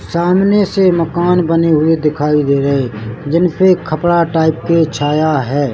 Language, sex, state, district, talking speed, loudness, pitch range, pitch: Hindi, male, Chhattisgarh, Bilaspur, 145 wpm, -13 LUFS, 150-175 Hz, 160 Hz